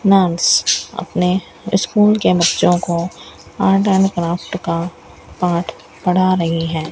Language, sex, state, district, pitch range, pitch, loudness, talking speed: Hindi, female, Rajasthan, Bikaner, 170-190 Hz, 180 Hz, -16 LUFS, 120 wpm